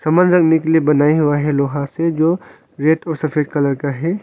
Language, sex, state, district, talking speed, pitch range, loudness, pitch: Hindi, male, Arunachal Pradesh, Longding, 225 wpm, 145-165 Hz, -16 LUFS, 155 Hz